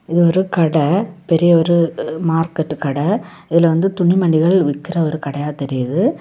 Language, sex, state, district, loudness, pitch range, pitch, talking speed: Tamil, female, Tamil Nadu, Kanyakumari, -16 LUFS, 155-180 Hz, 165 Hz, 135 wpm